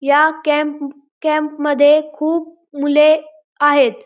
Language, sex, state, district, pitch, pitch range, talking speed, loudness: Marathi, male, Maharashtra, Pune, 300 Hz, 290-310 Hz, 105 wpm, -15 LUFS